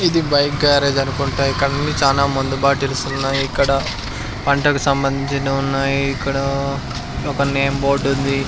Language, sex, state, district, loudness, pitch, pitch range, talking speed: Telugu, male, Andhra Pradesh, Sri Satya Sai, -18 LUFS, 140 Hz, 135-140 Hz, 125 wpm